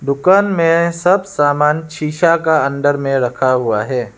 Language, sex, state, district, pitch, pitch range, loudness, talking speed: Hindi, male, Arunachal Pradesh, Lower Dibang Valley, 150 Hz, 135-170 Hz, -14 LUFS, 160 wpm